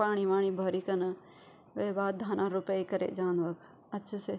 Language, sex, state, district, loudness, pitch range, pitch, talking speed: Garhwali, female, Uttarakhand, Tehri Garhwal, -33 LUFS, 185-200 Hz, 190 Hz, 165 wpm